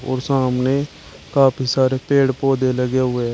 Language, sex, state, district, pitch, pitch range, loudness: Hindi, male, Uttar Pradesh, Shamli, 130 Hz, 130-135 Hz, -18 LUFS